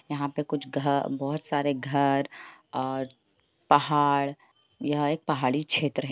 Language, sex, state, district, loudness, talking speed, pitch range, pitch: Hindi, male, Bihar, Lakhisarai, -27 LUFS, 145 wpm, 140-150 Hz, 145 Hz